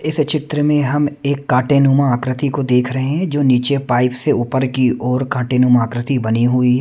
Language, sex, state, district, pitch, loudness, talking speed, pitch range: Hindi, male, Haryana, Charkhi Dadri, 130 Hz, -16 LUFS, 210 wpm, 125-145 Hz